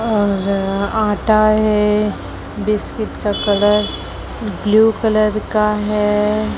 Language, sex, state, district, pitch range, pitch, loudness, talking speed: Hindi, male, Chhattisgarh, Raipur, 205-215 Hz, 210 Hz, -16 LUFS, 90 wpm